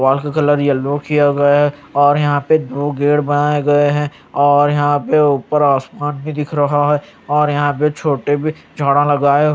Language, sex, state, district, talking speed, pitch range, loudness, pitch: Hindi, male, Chandigarh, Chandigarh, 195 wpm, 145-150 Hz, -15 LUFS, 145 Hz